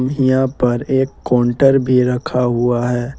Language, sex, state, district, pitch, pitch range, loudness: Hindi, male, Jharkhand, Ranchi, 125 Hz, 120-130 Hz, -16 LUFS